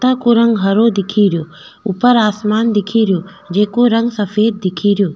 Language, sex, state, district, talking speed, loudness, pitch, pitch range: Rajasthani, female, Rajasthan, Nagaur, 175 wpm, -14 LUFS, 210 Hz, 195-230 Hz